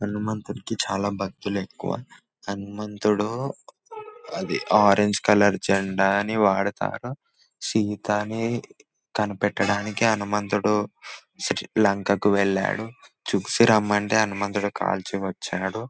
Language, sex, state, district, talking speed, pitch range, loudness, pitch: Telugu, male, Telangana, Nalgonda, 75 wpm, 100-110 Hz, -24 LUFS, 105 Hz